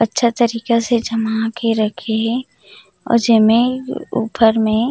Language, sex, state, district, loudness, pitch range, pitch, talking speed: Chhattisgarhi, female, Chhattisgarh, Rajnandgaon, -17 LUFS, 220-235 Hz, 230 Hz, 145 wpm